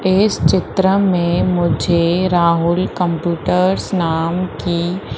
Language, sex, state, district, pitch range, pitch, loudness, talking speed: Hindi, female, Madhya Pradesh, Umaria, 170-185 Hz, 175 Hz, -16 LUFS, 90 wpm